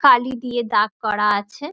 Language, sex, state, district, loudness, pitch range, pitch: Bengali, female, West Bengal, Dakshin Dinajpur, -20 LUFS, 210-255 Hz, 240 Hz